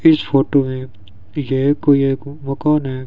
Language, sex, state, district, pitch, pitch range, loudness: Hindi, male, Rajasthan, Bikaner, 135 Hz, 130-145 Hz, -17 LUFS